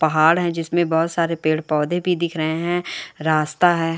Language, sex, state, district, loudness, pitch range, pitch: Hindi, female, Uttarakhand, Uttarkashi, -20 LUFS, 155-175 Hz, 165 Hz